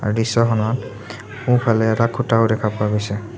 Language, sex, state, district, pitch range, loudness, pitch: Assamese, male, Assam, Sonitpur, 105-115 Hz, -19 LUFS, 110 Hz